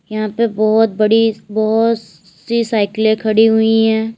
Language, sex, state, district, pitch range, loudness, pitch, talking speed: Hindi, female, Uttar Pradesh, Lalitpur, 215-225 Hz, -14 LUFS, 220 Hz, 145 wpm